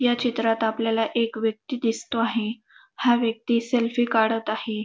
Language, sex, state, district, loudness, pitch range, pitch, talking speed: Marathi, female, Maharashtra, Dhule, -24 LUFS, 225-235 Hz, 230 Hz, 150 wpm